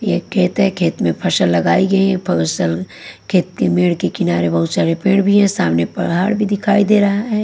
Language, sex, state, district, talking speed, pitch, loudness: Hindi, female, Odisha, Nuapada, 220 wpm, 180 Hz, -15 LUFS